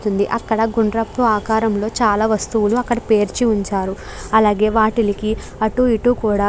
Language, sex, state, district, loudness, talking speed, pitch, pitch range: Telugu, female, Andhra Pradesh, Krishna, -17 LUFS, 150 wpm, 220 Hz, 210-225 Hz